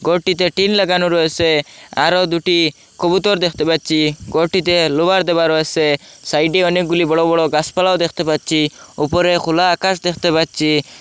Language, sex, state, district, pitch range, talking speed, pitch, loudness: Bengali, male, Assam, Hailakandi, 155-180 Hz, 135 wpm, 170 Hz, -15 LUFS